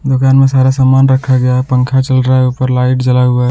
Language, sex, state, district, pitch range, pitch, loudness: Hindi, male, Jharkhand, Deoghar, 125-130 Hz, 130 Hz, -10 LUFS